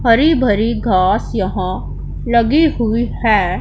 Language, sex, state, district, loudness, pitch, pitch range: Hindi, female, Punjab, Pathankot, -15 LUFS, 235 Hz, 225-270 Hz